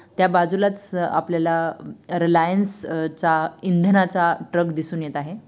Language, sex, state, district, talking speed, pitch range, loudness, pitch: Marathi, female, Maharashtra, Dhule, 110 wpm, 160-185 Hz, -21 LUFS, 170 Hz